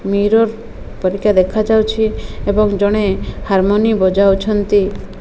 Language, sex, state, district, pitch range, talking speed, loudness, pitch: Odia, female, Odisha, Malkangiri, 195-215 Hz, 80 wpm, -15 LUFS, 205 Hz